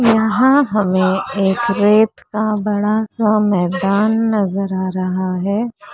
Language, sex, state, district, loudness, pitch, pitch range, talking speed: Hindi, female, Maharashtra, Mumbai Suburban, -16 LUFS, 205 Hz, 190-215 Hz, 120 wpm